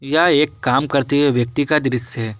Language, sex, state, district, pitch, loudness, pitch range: Hindi, male, Jharkhand, Garhwa, 140 Hz, -17 LUFS, 125-145 Hz